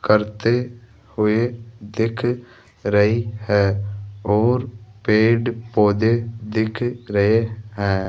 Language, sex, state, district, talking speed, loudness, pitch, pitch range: Hindi, male, Rajasthan, Jaipur, 80 wpm, -20 LUFS, 110 Hz, 105-115 Hz